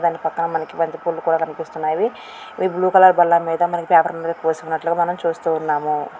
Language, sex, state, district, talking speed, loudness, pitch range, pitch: Telugu, female, Andhra Pradesh, Srikakulam, 185 wpm, -19 LUFS, 160-170 Hz, 165 Hz